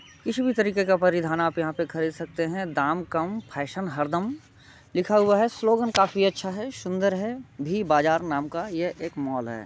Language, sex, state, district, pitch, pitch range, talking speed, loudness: Hindi, male, Bihar, Muzaffarpur, 180 Hz, 160-205 Hz, 205 wpm, -25 LUFS